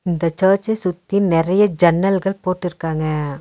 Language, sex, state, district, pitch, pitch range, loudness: Tamil, female, Tamil Nadu, Nilgiris, 180 Hz, 165-195 Hz, -18 LUFS